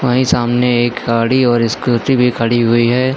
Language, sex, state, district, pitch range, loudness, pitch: Hindi, male, Uttar Pradesh, Lucknow, 120-125 Hz, -13 LUFS, 120 Hz